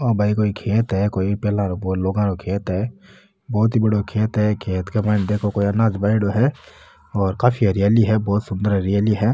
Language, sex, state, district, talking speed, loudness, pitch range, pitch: Marwari, male, Rajasthan, Nagaur, 210 wpm, -20 LUFS, 100-110 Hz, 105 Hz